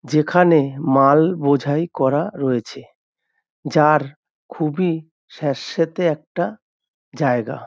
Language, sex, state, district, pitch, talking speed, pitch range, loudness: Bengali, male, West Bengal, North 24 Parganas, 150 Hz, 85 wpm, 140-160 Hz, -19 LUFS